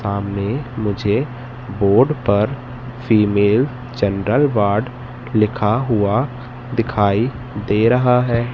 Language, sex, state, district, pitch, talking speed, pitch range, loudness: Hindi, male, Madhya Pradesh, Katni, 120 Hz, 90 wpm, 105-125 Hz, -18 LUFS